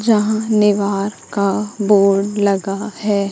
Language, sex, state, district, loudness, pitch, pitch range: Hindi, female, Madhya Pradesh, Katni, -17 LUFS, 205 Hz, 200-210 Hz